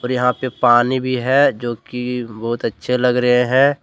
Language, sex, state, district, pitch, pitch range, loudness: Hindi, male, Jharkhand, Deoghar, 125 Hz, 120-130 Hz, -17 LUFS